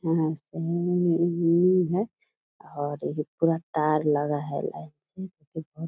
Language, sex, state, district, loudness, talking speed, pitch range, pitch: Hindi, female, Bihar, Purnia, -26 LUFS, 100 wpm, 150-170 Hz, 165 Hz